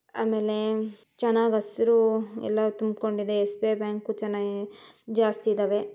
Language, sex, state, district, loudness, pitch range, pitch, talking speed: Kannada, female, Karnataka, Mysore, -26 LUFS, 210-220 Hz, 215 Hz, 100 wpm